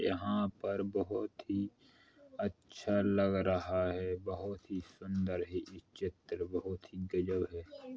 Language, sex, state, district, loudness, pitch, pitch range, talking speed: Hindi, male, Uttar Pradesh, Jalaun, -37 LUFS, 95 Hz, 90-100 Hz, 135 wpm